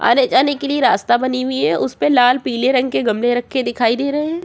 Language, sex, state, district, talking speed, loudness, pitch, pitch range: Hindi, female, Uttar Pradesh, Jyotiba Phule Nagar, 255 wpm, -16 LUFS, 255 Hz, 240-275 Hz